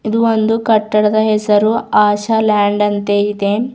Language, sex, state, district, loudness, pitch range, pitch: Kannada, female, Karnataka, Bidar, -14 LUFS, 205-220 Hz, 215 Hz